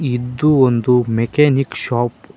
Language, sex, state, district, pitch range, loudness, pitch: Kannada, male, Karnataka, Koppal, 120-135 Hz, -16 LUFS, 125 Hz